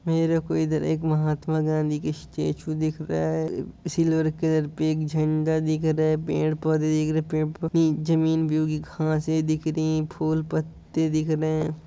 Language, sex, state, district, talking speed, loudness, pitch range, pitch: Hindi, male, Andhra Pradesh, Guntur, 195 wpm, -25 LUFS, 155-160 Hz, 155 Hz